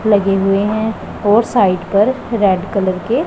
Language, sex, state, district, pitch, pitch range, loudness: Hindi, female, Punjab, Pathankot, 205 Hz, 195-220 Hz, -15 LUFS